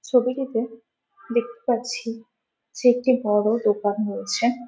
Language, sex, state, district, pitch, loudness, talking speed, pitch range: Bengali, female, West Bengal, Malda, 230 Hz, -23 LUFS, 115 wpm, 220-245 Hz